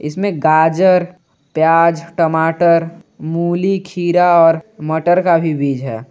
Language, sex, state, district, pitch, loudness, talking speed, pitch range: Hindi, male, Jharkhand, Garhwa, 165 Hz, -14 LUFS, 130 wpm, 160-175 Hz